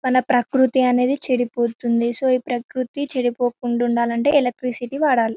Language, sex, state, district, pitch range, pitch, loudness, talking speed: Telugu, female, Telangana, Karimnagar, 240-255 Hz, 250 Hz, -20 LUFS, 125 wpm